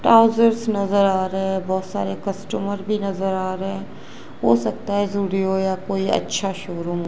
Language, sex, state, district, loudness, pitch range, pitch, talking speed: Hindi, female, Gujarat, Gandhinagar, -21 LUFS, 185-200 Hz, 195 Hz, 180 wpm